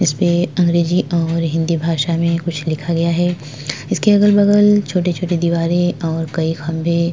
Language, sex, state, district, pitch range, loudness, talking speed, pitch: Hindi, female, Chhattisgarh, Korba, 165-175 Hz, -16 LUFS, 185 wpm, 170 Hz